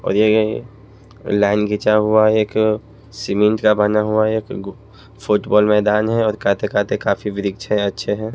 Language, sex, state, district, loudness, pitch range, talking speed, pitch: Hindi, male, Haryana, Jhajjar, -17 LUFS, 105-110 Hz, 160 wpm, 105 Hz